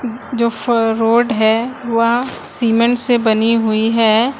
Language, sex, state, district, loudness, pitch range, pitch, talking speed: Hindi, female, Uttar Pradesh, Lucknow, -14 LUFS, 225-240 Hz, 230 Hz, 135 wpm